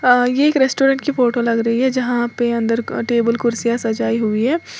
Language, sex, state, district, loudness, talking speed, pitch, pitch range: Hindi, female, Uttar Pradesh, Lalitpur, -17 LUFS, 215 wpm, 240 Hz, 230-260 Hz